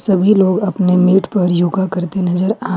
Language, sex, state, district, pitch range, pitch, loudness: Hindi, female, Jharkhand, Ranchi, 180-195 Hz, 190 Hz, -14 LUFS